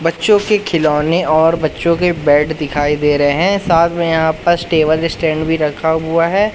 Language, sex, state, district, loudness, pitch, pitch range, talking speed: Hindi, male, Madhya Pradesh, Katni, -14 LUFS, 160 Hz, 155-170 Hz, 185 wpm